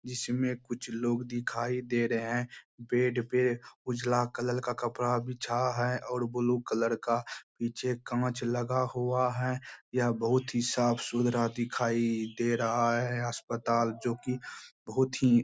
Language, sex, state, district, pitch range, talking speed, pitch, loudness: Hindi, male, Bihar, Bhagalpur, 120-125 Hz, 150 wpm, 120 Hz, -31 LUFS